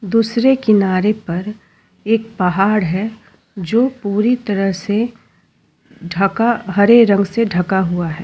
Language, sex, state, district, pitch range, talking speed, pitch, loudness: Hindi, female, Uttar Pradesh, Jyotiba Phule Nagar, 190-225 Hz, 125 wpm, 210 Hz, -16 LUFS